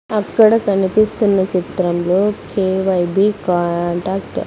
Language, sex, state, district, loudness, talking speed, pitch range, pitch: Telugu, female, Andhra Pradesh, Sri Satya Sai, -16 LUFS, 80 wpm, 180-210 Hz, 190 Hz